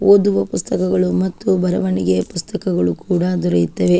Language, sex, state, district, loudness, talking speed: Kannada, female, Karnataka, Shimoga, -18 LUFS, 105 wpm